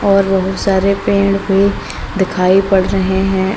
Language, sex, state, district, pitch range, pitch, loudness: Hindi, female, Uttar Pradesh, Lalitpur, 190-200 Hz, 195 Hz, -14 LUFS